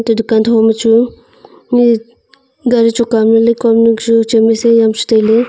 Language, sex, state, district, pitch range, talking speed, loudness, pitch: Wancho, female, Arunachal Pradesh, Longding, 225-235 Hz, 155 wpm, -11 LUFS, 230 Hz